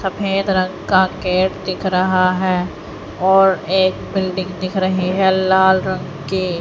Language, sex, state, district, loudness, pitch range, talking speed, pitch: Hindi, female, Haryana, Jhajjar, -17 LUFS, 185-190 Hz, 145 wpm, 185 Hz